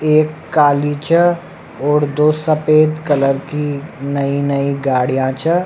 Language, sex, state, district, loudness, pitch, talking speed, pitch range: Rajasthani, male, Rajasthan, Nagaur, -16 LUFS, 145 Hz, 125 wpm, 140-155 Hz